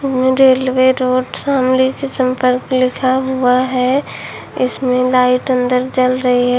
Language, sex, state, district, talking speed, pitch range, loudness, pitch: Hindi, female, Uttar Pradesh, Shamli, 135 wpm, 250-260 Hz, -14 LUFS, 255 Hz